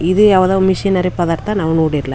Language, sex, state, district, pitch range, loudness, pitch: Kannada, female, Karnataka, Chamarajanagar, 165-190 Hz, -14 LUFS, 180 Hz